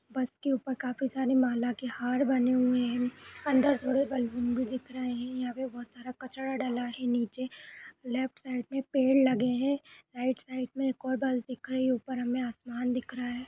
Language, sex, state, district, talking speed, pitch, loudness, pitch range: Hindi, female, Uttar Pradesh, Budaun, 210 wpm, 255 Hz, -31 LUFS, 245-260 Hz